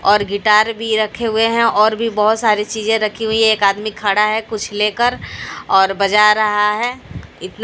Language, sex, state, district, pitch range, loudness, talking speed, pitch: Hindi, female, Odisha, Sambalpur, 210-225 Hz, -15 LUFS, 180 wpm, 215 Hz